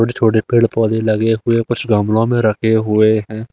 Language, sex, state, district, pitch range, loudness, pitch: Hindi, male, Delhi, New Delhi, 110-115 Hz, -15 LUFS, 110 Hz